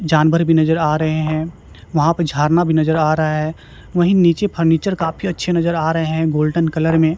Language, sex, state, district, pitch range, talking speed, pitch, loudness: Hindi, male, Chhattisgarh, Raipur, 155-170 Hz, 215 wpm, 160 Hz, -17 LUFS